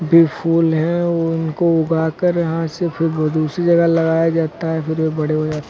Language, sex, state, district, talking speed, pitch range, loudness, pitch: Hindi, male, Uttar Pradesh, Lucknow, 220 wpm, 160-165 Hz, -17 LUFS, 165 Hz